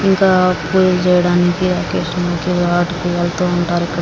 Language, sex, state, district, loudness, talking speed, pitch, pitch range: Telugu, female, Andhra Pradesh, Srikakulam, -15 LUFS, 120 wpm, 175 Hz, 175-180 Hz